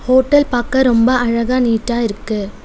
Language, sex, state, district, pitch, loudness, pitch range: Tamil, female, Tamil Nadu, Nilgiris, 240 Hz, -15 LUFS, 230-255 Hz